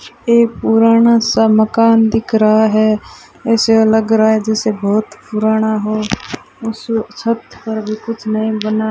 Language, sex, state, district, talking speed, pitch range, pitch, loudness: Hindi, female, Rajasthan, Bikaner, 155 wpm, 215-230 Hz, 220 Hz, -14 LUFS